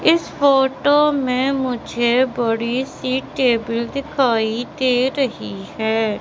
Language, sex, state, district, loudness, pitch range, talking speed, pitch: Hindi, female, Madhya Pradesh, Katni, -19 LUFS, 235-270 Hz, 105 wpm, 255 Hz